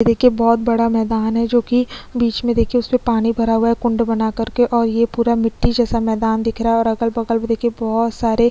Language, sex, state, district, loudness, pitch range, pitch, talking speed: Hindi, female, Chhattisgarh, Sukma, -17 LUFS, 225-235 Hz, 230 Hz, 240 wpm